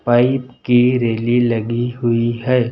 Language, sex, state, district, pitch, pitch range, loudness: Hindi, male, Madhya Pradesh, Bhopal, 120 Hz, 120-125 Hz, -17 LUFS